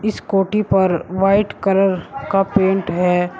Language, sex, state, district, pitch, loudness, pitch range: Hindi, male, Uttar Pradesh, Shamli, 195 Hz, -17 LUFS, 185-195 Hz